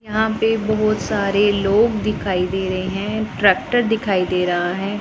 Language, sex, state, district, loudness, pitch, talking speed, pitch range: Hindi, female, Punjab, Pathankot, -19 LUFS, 205 Hz, 165 wpm, 190-215 Hz